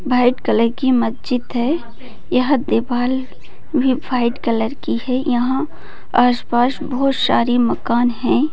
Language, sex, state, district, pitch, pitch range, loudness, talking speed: Hindi, female, Bihar, Bhagalpur, 250 Hz, 240-265 Hz, -18 LUFS, 125 wpm